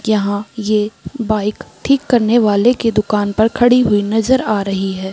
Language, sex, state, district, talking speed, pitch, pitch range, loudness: Hindi, female, Bihar, Gaya, 175 wpm, 215 Hz, 205-235 Hz, -15 LUFS